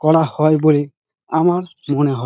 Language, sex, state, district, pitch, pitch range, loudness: Bengali, male, West Bengal, Dakshin Dinajpur, 155 Hz, 145-160 Hz, -17 LUFS